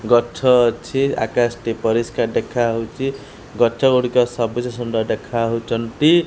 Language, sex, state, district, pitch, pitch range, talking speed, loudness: Odia, male, Odisha, Khordha, 120 Hz, 115-125 Hz, 105 wpm, -19 LUFS